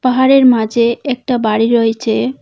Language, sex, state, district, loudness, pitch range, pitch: Bengali, female, West Bengal, Cooch Behar, -13 LUFS, 225-255 Hz, 240 Hz